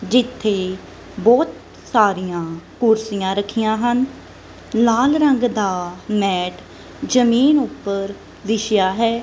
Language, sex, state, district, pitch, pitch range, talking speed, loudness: Punjabi, female, Punjab, Kapurthala, 220 Hz, 195-240 Hz, 90 wpm, -18 LUFS